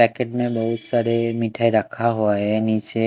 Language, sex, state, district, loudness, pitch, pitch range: Hindi, male, Punjab, Kapurthala, -21 LUFS, 115 Hz, 110-115 Hz